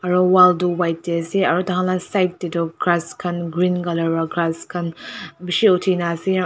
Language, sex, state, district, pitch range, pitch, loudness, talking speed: Nagamese, female, Nagaland, Dimapur, 170-180 Hz, 175 Hz, -19 LUFS, 205 wpm